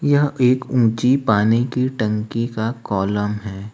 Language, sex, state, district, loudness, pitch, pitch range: Hindi, male, Uttar Pradesh, Lalitpur, -19 LUFS, 115 Hz, 105-125 Hz